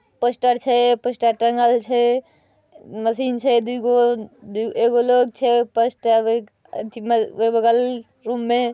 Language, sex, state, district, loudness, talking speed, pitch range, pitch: Maithili, female, Bihar, Saharsa, -19 LUFS, 115 wpm, 230-245 Hz, 240 Hz